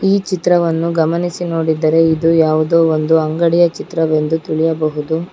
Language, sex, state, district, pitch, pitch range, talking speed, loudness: Kannada, female, Karnataka, Bangalore, 165 Hz, 160-170 Hz, 110 wpm, -15 LUFS